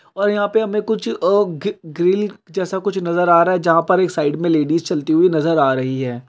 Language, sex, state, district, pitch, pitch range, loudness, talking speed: Hindi, male, Bihar, Gaya, 180 Hz, 165-205 Hz, -17 LUFS, 240 wpm